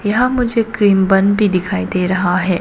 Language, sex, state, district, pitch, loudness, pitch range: Hindi, female, Arunachal Pradesh, Papum Pare, 195 Hz, -15 LUFS, 185-215 Hz